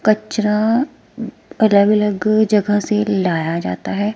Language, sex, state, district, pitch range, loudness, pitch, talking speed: Hindi, female, Himachal Pradesh, Shimla, 200-215 Hz, -17 LUFS, 210 Hz, 115 wpm